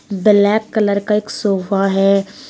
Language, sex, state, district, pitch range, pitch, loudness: Hindi, female, Uttar Pradesh, Shamli, 195-210 Hz, 200 Hz, -15 LUFS